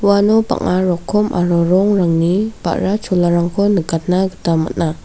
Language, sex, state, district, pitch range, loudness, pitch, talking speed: Garo, female, Meghalaya, South Garo Hills, 170-200 Hz, -15 LUFS, 185 Hz, 120 wpm